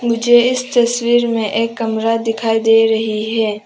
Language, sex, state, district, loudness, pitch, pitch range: Hindi, female, Arunachal Pradesh, Papum Pare, -15 LUFS, 225 Hz, 225-240 Hz